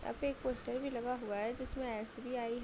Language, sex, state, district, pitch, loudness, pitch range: Hindi, female, Uttar Pradesh, Deoria, 250 Hz, -40 LUFS, 230-260 Hz